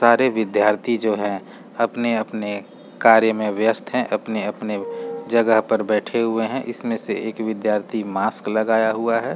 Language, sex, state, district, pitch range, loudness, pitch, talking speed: Hindi, male, Jharkhand, Jamtara, 105-115 Hz, -21 LUFS, 110 Hz, 150 wpm